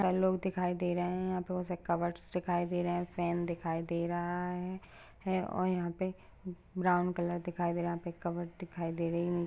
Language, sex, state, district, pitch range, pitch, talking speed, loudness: Hindi, female, Uttarakhand, Uttarkashi, 175-180 Hz, 175 Hz, 235 wpm, -35 LUFS